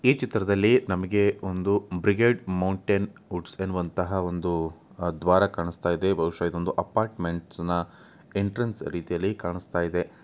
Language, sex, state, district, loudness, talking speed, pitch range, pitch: Kannada, male, Karnataka, Mysore, -26 LUFS, 105 wpm, 85-100 Hz, 95 Hz